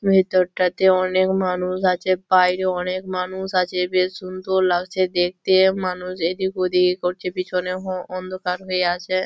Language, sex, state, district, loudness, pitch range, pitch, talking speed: Bengali, female, West Bengal, Malda, -21 LUFS, 180-185 Hz, 185 Hz, 135 wpm